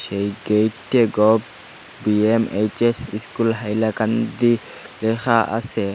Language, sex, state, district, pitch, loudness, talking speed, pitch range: Bengali, male, Assam, Hailakandi, 110 Hz, -20 LUFS, 80 wpm, 105-115 Hz